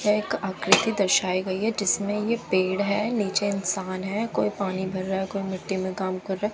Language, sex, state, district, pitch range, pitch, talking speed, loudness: Hindi, female, Haryana, Jhajjar, 190-205 Hz, 195 Hz, 220 wpm, -25 LUFS